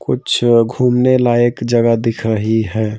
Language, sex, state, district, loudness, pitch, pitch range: Hindi, male, Madhya Pradesh, Bhopal, -14 LUFS, 115 Hz, 110-120 Hz